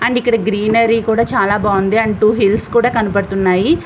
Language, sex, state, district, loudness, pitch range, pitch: Telugu, female, Andhra Pradesh, Visakhapatnam, -14 LUFS, 200-230 Hz, 220 Hz